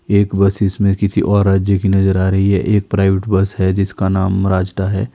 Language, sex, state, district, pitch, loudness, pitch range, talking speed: Hindi, male, Himachal Pradesh, Shimla, 100 Hz, -15 LUFS, 95-100 Hz, 220 wpm